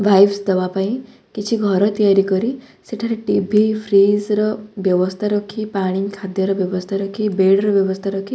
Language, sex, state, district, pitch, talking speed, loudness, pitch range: Odia, female, Odisha, Khordha, 200 Hz, 150 wpm, -18 LUFS, 195-215 Hz